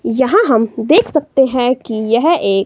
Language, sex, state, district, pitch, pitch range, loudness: Hindi, female, Himachal Pradesh, Shimla, 245 Hz, 225-270 Hz, -13 LUFS